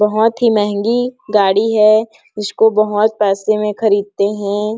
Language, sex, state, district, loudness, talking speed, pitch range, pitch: Hindi, female, Chhattisgarh, Sarguja, -14 LUFS, 140 wpm, 205-220 Hz, 215 Hz